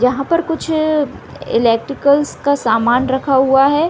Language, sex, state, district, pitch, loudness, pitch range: Hindi, female, Chhattisgarh, Raigarh, 280 Hz, -15 LUFS, 250-295 Hz